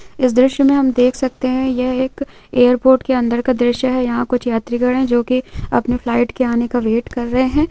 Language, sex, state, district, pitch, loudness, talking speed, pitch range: Hindi, female, West Bengal, North 24 Parganas, 250 Hz, -16 LUFS, 235 wpm, 240-260 Hz